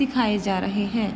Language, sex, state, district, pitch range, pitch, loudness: Hindi, female, Uttar Pradesh, Varanasi, 205-230 Hz, 210 Hz, -24 LUFS